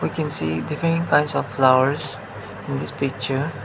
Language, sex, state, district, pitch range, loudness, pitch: English, male, Nagaland, Dimapur, 130-150 Hz, -21 LUFS, 135 Hz